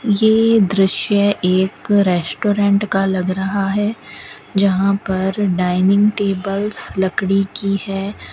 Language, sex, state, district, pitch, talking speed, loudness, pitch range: Hindi, female, Rajasthan, Bikaner, 195 Hz, 110 wpm, -17 LUFS, 190-205 Hz